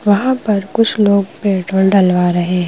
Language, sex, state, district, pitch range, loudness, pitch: Hindi, female, Madhya Pradesh, Bhopal, 185-210 Hz, -14 LUFS, 200 Hz